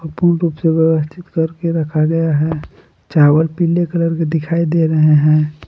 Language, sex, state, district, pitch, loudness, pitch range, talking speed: Hindi, male, Jharkhand, Palamu, 160 Hz, -15 LUFS, 155-170 Hz, 170 wpm